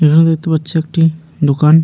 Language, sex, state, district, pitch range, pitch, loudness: Bengali, male, West Bengal, Paschim Medinipur, 155-165 Hz, 160 Hz, -14 LUFS